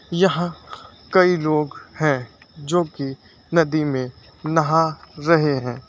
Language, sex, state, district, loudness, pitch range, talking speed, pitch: Hindi, male, Uttar Pradesh, Lucknow, -21 LUFS, 135-170 Hz, 110 wpm, 155 Hz